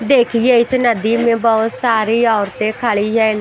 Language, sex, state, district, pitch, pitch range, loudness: Hindi, female, Bihar, Patna, 230 Hz, 220-235 Hz, -15 LUFS